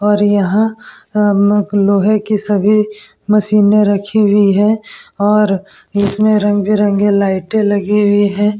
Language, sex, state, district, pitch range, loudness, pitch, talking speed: Hindi, female, Uttar Pradesh, Etah, 200-210 Hz, -13 LUFS, 205 Hz, 135 wpm